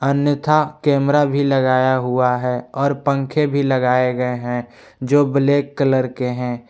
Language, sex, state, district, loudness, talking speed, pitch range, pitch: Hindi, male, Jharkhand, Palamu, -18 LUFS, 150 wpm, 125-140 Hz, 135 Hz